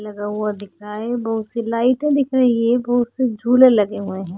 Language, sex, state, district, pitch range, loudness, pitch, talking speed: Hindi, female, Maharashtra, Chandrapur, 210-245 Hz, -18 LUFS, 230 Hz, 245 wpm